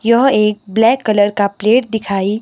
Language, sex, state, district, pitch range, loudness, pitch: Hindi, female, Himachal Pradesh, Shimla, 205-230 Hz, -14 LUFS, 215 Hz